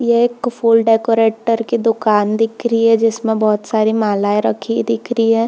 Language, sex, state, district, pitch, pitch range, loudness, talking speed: Hindi, female, Bihar, Purnia, 225 Hz, 215-230 Hz, -15 LUFS, 185 wpm